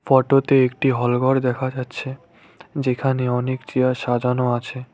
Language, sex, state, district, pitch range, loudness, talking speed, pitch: Bengali, male, West Bengal, Cooch Behar, 125-135 Hz, -20 LUFS, 145 wpm, 130 Hz